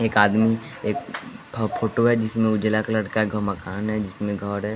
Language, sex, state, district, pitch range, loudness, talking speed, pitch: Hindi, male, Bihar, West Champaran, 105-110 Hz, -23 LUFS, 175 wpm, 110 Hz